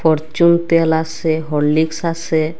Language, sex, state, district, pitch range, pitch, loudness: Bengali, female, Assam, Hailakandi, 155-165 Hz, 160 Hz, -16 LUFS